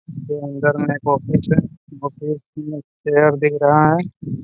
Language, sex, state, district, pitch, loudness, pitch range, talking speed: Hindi, male, Chhattisgarh, Raigarh, 150 Hz, -18 LUFS, 145-150 Hz, 160 wpm